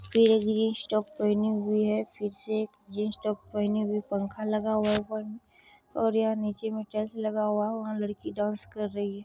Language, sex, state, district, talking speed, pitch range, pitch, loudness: Maithili, female, Bihar, Supaul, 215 wpm, 210-215 Hz, 215 Hz, -29 LUFS